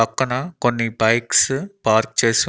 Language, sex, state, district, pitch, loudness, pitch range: Telugu, male, Andhra Pradesh, Annamaya, 120 Hz, -18 LUFS, 115-135 Hz